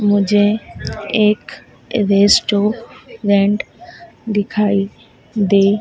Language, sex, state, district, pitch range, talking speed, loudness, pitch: Hindi, female, Madhya Pradesh, Dhar, 200-215 Hz, 50 wpm, -16 LUFS, 205 Hz